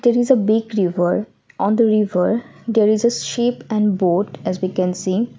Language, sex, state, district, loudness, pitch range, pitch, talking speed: English, female, Assam, Kamrup Metropolitan, -18 LUFS, 185-230 Hz, 210 Hz, 200 wpm